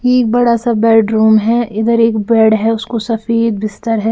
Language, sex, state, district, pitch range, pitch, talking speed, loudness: Hindi, female, Bihar, Patna, 220-235 Hz, 225 Hz, 190 wpm, -13 LUFS